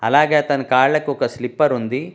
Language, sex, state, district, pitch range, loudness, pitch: Telugu, male, Telangana, Hyderabad, 130-150 Hz, -18 LUFS, 140 Hz